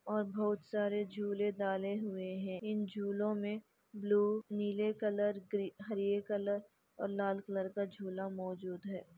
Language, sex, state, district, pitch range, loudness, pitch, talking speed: Hindi, female, Chhattisgarh, Bastar, 195-210 Hz, -38 LUFS, 205 Hz, 150 wpm